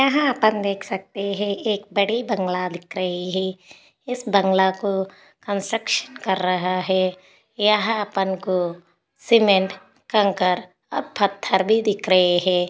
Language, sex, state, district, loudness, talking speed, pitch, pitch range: Hindi, female, Maharashtra, Sindhudurg, -21 LUFS, 125 wpm, 195 Hz, 185-210 Hz